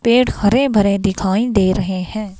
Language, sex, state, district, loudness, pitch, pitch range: Hindi, female, Himachal Pradesh, Shimla, -16 LUFS, 205 Hz, 190-225 Hz